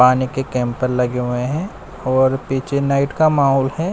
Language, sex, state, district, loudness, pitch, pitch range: Hindi, male, Bihar, West Champaran, -18 LUFS, 130 Hz, 125-140 Hz